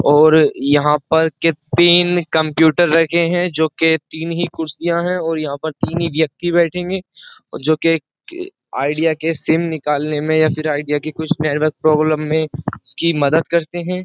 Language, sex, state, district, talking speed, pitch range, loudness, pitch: Hindi, male, Uttar Pradesh, Jyotiba Phule Nagar, 170 wpm, 155-170 Hz, -16 LUFS, 160 Hz